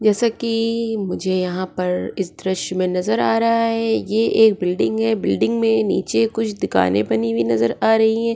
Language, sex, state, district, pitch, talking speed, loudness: Hindi, female, Goa, North and South Goa, 185 Hz, 195 wpm, -19 LUFS